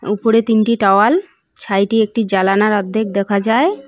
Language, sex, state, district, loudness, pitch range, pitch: Bengali, female, West Bengal, Cooch Behar, -15 LUFS, 200-230 Hz, 215 Hz